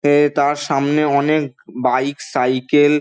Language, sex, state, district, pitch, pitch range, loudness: Bengali, male, West Bengal, Dakshin Dinajpur, 145 Hz, 135-145 Hz, -17 LUFS